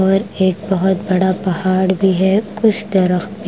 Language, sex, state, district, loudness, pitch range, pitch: Hindi, female, Punjab, Kapurthala, -16 LUFS, 185-200 Hz, 190 Hz